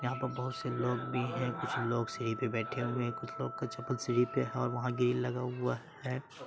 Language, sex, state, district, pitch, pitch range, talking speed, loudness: Hindi, male, Bihar, Saharsa, 125 Hz, 120-130 Hz, 250 wpm, -35 LUFS